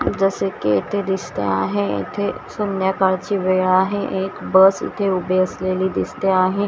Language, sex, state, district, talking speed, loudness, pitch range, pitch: Marathi, female, Maharashtra, Washim, 145 wpm, -19 LUFS, 185-195 Hz, 190 Hz